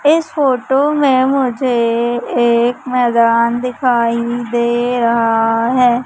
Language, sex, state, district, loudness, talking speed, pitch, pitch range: Hindi, female, Madhya Pradesh, Umaria, -14 LUFS, 100 wpm, 240 Hz, 235-260 Hz